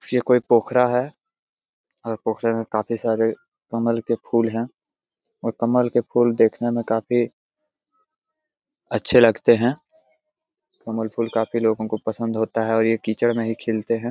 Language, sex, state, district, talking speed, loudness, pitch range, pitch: Hindi, male, Jharkhand, Jamtara, 160 wpm, -21 LUFS, 115-125 Hz, 115 Hz